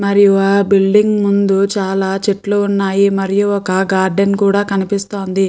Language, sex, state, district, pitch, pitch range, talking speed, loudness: Telugu, female, Andhra Pradesh, Guntur, 200 Hz, 195-200 Hz, 130 wpm, -14 LUFS